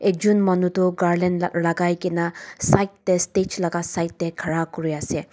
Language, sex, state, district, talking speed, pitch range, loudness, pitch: Nagamese, female, Nagaland, Dimapur, 180 wpm, 170-185 Hz, -22 LUFS, 175 Hz